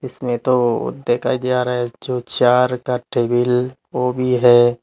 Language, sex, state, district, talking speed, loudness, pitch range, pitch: Hindi, male, Tripura, Unakoti, 160 wpm, -18 LUFS, 120-125 Hz, 125 Hz